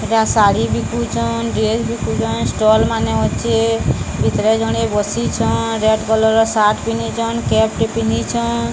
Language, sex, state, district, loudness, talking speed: Odia, female, Odisha, Sambalpur, -16 LUFS, 130 wpm